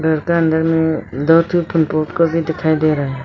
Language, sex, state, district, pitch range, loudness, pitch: Hindi, female, Arunachal Pradesh, Lower Dibang Valley, 155-165 Hz, -16 LUFS, 160 Hz